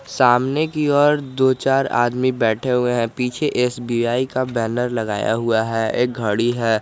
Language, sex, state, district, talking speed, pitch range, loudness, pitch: Hindi, male, Jharkhand, Garhwa, 165 wpm, 115-130 Hz, -19 LUFS, 125 Hz